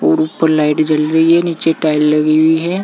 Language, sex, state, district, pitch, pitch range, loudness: Hindi, male, Uttar Pradesh, Saharanpur, 155 Hz, 150-160 Hz, -13 LUFS